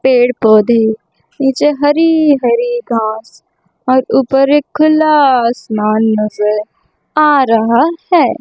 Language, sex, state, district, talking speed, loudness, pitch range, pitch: Hindi, female, Chandigarh, Chandigarh, 95 wpm, -12 LUFS, 225-295 Hz, 255 Hz